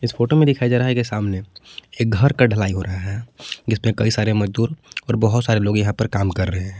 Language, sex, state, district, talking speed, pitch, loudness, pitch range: Hindi, male, Jharkhand, Palamu, 265 wpm, 110 Hz, -19 LUFS, 100-120 Hz